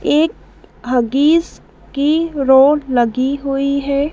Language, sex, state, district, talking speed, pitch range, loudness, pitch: Hindi, female, Madhya Pradesh, Dhar, 100 wpm, 265-300 Hz, -15 LUFS, 280 Hz